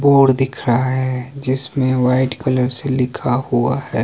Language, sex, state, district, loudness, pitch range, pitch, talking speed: Hindi, male, Himachal Pradesh, Shimla, -17 LUFS, 125-130 Hz, 130 Hz, 165 wpm